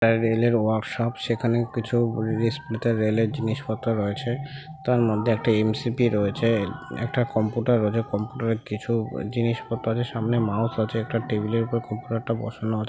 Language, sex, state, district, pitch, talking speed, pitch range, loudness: Bengali, male, West Bengal, North 24 Parganas, 115 Hz, 165 wpm, 110-120 Hz, -25 LUFS